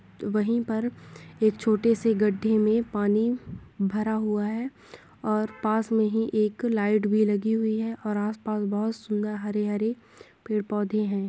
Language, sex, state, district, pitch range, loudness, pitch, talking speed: Hindi, female, Bihar, Vaishali, 210-225 Hz, -26 LUFS, 215 Hz, 155 wpm